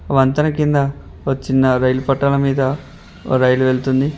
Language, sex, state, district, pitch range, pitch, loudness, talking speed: Telugu, male, Telangana, Mahabubabad, 130-140 Hz, 135 Hz, -17 LUFS, 115 wpm